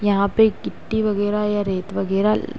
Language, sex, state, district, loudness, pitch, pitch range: Hindi, female, Uttar Pradesh, Hamirpur, -20 LUFS, 205 Hz, 195-210 Hz